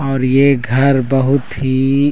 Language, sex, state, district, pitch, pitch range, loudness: Chhattisgarhi, male, Chhattisgarh, Raigarh, 135 Hz, 130-140 Hz, -14 LUFS